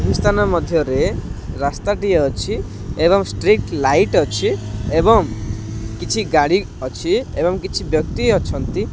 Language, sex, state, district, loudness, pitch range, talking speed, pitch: Odia, male, Odisha, Khordha, -18 LUFS, 110-140 Hz, 130 wpm, 110 Hz